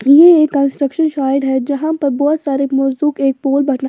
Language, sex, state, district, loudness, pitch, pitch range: Hindi, female, Bihar, Patna, -14 LUFS, 280 Hz, 270-300 Hz